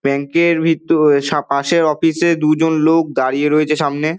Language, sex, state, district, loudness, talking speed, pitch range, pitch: Bengali, male, West Bengal, Dakshin Dinajpur, -15 LUFS, 155 wpm, 145-165 Hz, 155 Hz